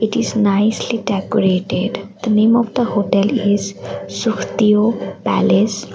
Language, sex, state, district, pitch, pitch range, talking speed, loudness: English, female, Assam, Kamrup Metropolitan, 210 Hz, 200-230 Hz, 120 wpm, -17 LUFS